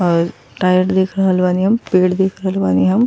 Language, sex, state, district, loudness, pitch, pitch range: Bhojpuri, female, Uttar Pradesh, Ghazipur, -16 LUFS, 185 Hz, 180-190 Hz